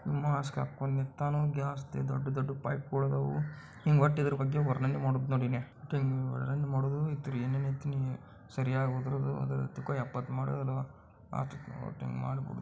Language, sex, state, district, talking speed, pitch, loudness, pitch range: Kannada, male, Karnataka, Bijapur, 120 wpm, 135 Hz, -33 LUFS, 130-145 Hz